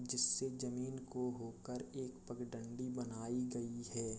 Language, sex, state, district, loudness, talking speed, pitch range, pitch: Hindi, male, Uttar Pradesh, Jalaun, -42 LUFS, 130 wpm, 120-125 Hz, 125 Hz